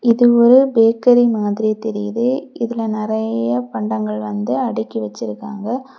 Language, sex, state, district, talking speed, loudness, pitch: Tamil, female, Tamil Nadu, Kanyakumari, 110 wpm, -17 LUFS, 220 Hz